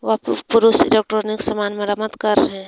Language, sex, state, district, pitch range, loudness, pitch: Hindi, female, Jharkhand, Palamu, 205-220 Hz, -18 LUFS, 215 Hz